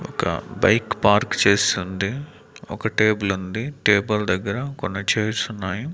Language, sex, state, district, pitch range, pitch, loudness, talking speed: Telugu, male, Andhra Pradesh, Manyam, 95-115 Hz, 105 Hz, -21 LUFS, 120 wpm